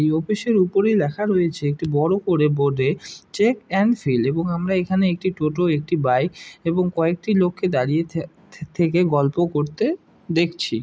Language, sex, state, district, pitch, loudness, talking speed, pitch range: Bengali, male, West Bengal, Dakshin Dinajpur, 170 Hz, -21 LUFS, 170 wpm, 150-190 Hz